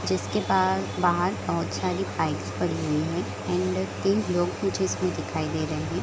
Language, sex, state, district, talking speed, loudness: Hindi, female, Chhattisgarh, Raigarh, 200 wpm, -26 LUFS